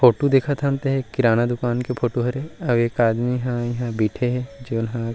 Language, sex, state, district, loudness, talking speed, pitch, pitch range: Chhattisgarhi, male, Chhattisgarh, Rajnandgaon, -22 LUFS, 220 wpm, 125 Hz, 120-135 Hz